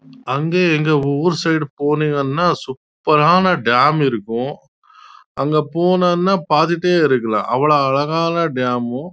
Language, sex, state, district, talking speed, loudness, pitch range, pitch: Tamil, male, Karnataka, Chamarajanagar, 100 wpm, -16 LUFS, 140-175 Hz, 150 Hz